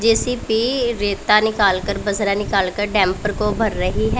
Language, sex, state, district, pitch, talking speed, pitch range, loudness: Hindi, female, Punjab, Pathankot, 205 Hz, 170 wpm, 195-220 Hz, -18 LUFS